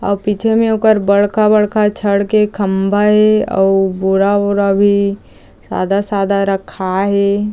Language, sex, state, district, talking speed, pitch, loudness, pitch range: Chhattisgarhi, female, Chhattisgarh, Jashpur, 120 wpm, 200 Hz, -13 LUFS, 195-210 Hz